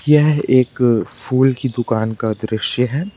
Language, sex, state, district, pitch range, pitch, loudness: Hindi, male, Madhya Pradesh, Bhopal, 110-135 Hz, 125 Hz, -17 LUFS